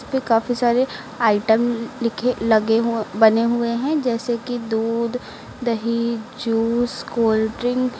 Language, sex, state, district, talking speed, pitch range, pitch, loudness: Hindi, female, Uttar Pradesh, Lucknow, 130 wpm, 225-245 Hz, 235 Hz, -20 LUFS